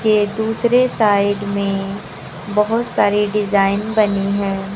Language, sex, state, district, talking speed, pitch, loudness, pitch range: Hindi, female, Uttar Pradesh, Lucknow, 115 wpm, 205 Hz, -17 LUFS, 200-215 Hz